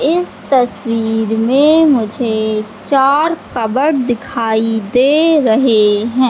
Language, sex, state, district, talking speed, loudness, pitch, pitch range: Hindi, female, Madhya Pradesh, Katni, 95 wpm, -13 LUFS, 245 Hz, 220-280 Hz